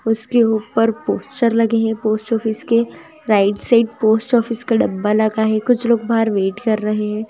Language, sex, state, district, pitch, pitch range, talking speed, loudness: Hindi, female, Chhattisgarh, Sukma, 225 Hz, 215-235 Hz, 190 wpm, -17 LUFS